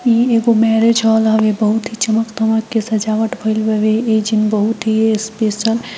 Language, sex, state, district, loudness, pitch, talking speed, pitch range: Hindi, female, Bihar, Gopalganj, -15 LUFS, 220 Hz, 180 wpm, 215-225 Hz